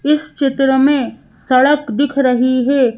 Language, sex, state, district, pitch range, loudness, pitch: Hindi, female, Madhya Pradesh, Bhopal, 255-285 Hz, -14 LUFS, 270 Hz